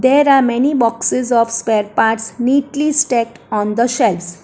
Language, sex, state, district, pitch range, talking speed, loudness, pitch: English, female, Gujarat, Valsad, 225-265 Hz, 160 wpm, -15 LUFS, 235 Hz